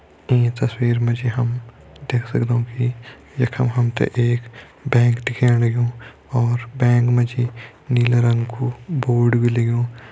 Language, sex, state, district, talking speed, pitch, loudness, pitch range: Hindi, male, Uttarakhand, Tehri Garhwal, 140 wpm, 120 Hz, -20 LUFS, 120-125 Hz